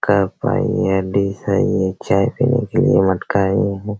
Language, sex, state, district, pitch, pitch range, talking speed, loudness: Hindi, male, Bihar, Araria, 100 Hz, 95-105 Hz, 135 wpm, -18 LUFS